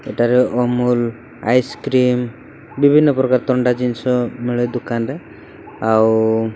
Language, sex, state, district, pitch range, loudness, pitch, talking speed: Odia, male, Odisha, Malkangiri, 120-130 Hz, -17 LUFS, 125 Hz, 100 wpm